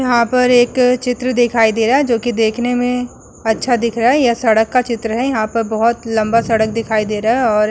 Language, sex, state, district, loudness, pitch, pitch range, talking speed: Hindi, female, Uttar Pradesh, Muzaffarnagar, -15 LUFS, 235 Hz, 225-245 Hz, 235 wpm